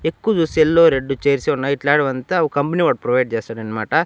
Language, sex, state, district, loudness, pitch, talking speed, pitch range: Telugu, male, Andhra Pradesh, Annamaya, -18 LUFS, 140 Hz, 160 wpm, 130-160 Hz